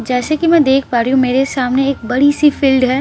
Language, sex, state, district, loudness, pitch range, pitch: Hindi, female, Bihar, Patna, -13 LUFS, 255-280 Hz, 265 Hz